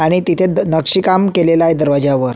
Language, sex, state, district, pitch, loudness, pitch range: Marathi, male, Maharashtra, Solapur, 165 Hz, -13 LUFS, 155-185 Hz